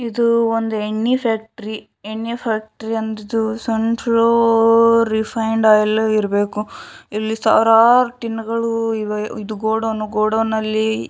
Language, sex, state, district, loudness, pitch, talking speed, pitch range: Kannada, female, Karnataka, Shimoga, -17 LUFS, 225 Hz, 110 wpm, 215-230 Hz